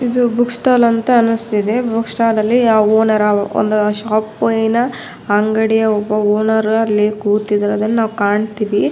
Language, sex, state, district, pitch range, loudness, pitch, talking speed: Kannada, female, Karnataka, Raichur, 210-230 Hz, -15 LUFS, 220 Hz, 115 wpm